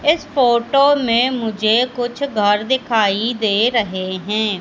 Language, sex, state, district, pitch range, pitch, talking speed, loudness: Hindi, female, Madhya Pradesh, Katni, 215-255 Hz, 235 Hz, 130 wpm, -17 LUFS